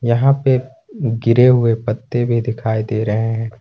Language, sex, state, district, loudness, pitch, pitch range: Hindi, male, Jharkhand, Ranchi, -17 LUFS, 120 Hz, 115-125 Hz